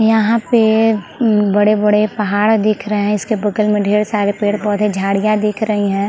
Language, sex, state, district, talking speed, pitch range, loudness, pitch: Hindi, female, Chhattisgarh, Bilaspur, 205 wpm, 205-220 Hz, -15 LUFS, 210 Hz